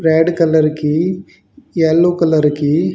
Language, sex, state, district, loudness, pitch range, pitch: Hindi, male, Haryana, Jhajjar, -14 LUFS, 155-175 Hz, 160 Hz